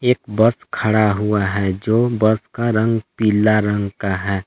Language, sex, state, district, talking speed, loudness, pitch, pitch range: Hindi, male, Jharkhand, Palamu, 175 wpm, -18 LUFS, 110 Hz, 100-115 Hz